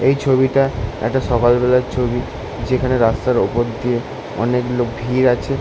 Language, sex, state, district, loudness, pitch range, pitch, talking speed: Bengali, male, West Bengal, Kolkata, -18 LUFS, 120-130 Hz, 125 Hz, 160 wpm